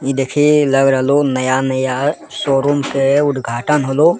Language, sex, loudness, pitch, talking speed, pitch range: Angika, male, -15 LUFS, 135 Hz, 130 wpm, 130-145 Hz